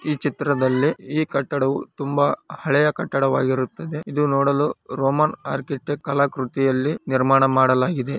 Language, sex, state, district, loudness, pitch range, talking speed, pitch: Kannada, male, Karnataka, Raichur, -21 LUFS, 135-150 Hz, 110 wpm, 140 Hz